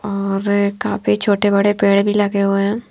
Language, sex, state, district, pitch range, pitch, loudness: Hindi, female, Himachal Pradesh, Shimla, 200-205 Hz, 200 Hz, -16 LUFS